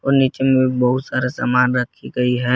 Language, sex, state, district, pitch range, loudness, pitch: Hindi, male, Jharkhand, Garhwa, 125-130 Hz, -18 LUFS, 125 Hz